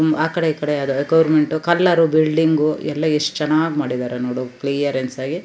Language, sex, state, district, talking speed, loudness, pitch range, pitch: Kannada, female, Karnataka, Shimoga, 175 wpm, -18 LUFS, 140-160 Hz, 155 Hz